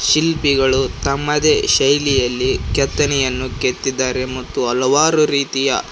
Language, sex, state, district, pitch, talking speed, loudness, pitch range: Kannada, male, Karnataka, Koppal, 135 Hz, 80 wpm, -16 LUFS, 130-145 Hz